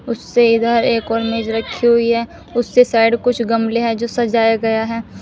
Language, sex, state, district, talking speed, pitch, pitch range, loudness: Hindi, female, Uttar Pradesh, Shamli, 195 wpm, 230 Hz, 225-235 Hz, -16 LUFS